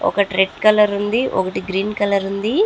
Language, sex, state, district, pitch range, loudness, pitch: Telugu, female, Andhra Pradesh, Chittoor, 195-210 Hz, -18 LUFS, 200 Hz